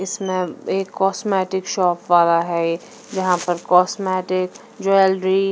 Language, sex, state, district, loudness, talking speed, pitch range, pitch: Hindi, female, Punjab, Fazilka, -19 LUFS, 130 wpm, 180-195 Hz, 185 Hz